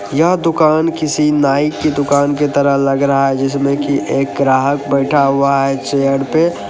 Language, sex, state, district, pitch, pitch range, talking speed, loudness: Hindi, male, Uttar Pradesh, Lalitpur, 140 Hz, 135-150 Hz, 180 wpm, -14 LUFS